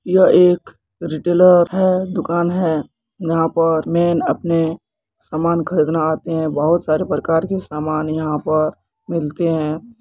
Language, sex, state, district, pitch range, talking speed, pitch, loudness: Maithili, male, Bihar, Kishanganj, 155-175 Hz, 140 wpm, 165 Hz, -17 LUFS